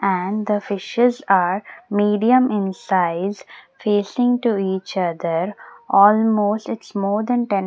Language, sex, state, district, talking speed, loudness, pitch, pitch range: English, female, Maharashtra, Mumbai Suburban, 125 wpm, -19 LUFS, 205 Hz, 190-220 Hz